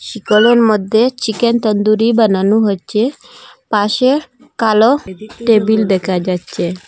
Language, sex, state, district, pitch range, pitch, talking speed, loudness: Bengali, female, Assam, Hailakandi, 205-235 Hz, 215 Hz, 95 wpm, -13 LUFS